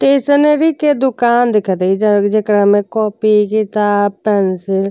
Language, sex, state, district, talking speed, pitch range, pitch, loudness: Bhojpuri, female, Uttar Pradesh, Deoria, 145 wpm, 205-245 Hz, 210 Hz, -13 LUFS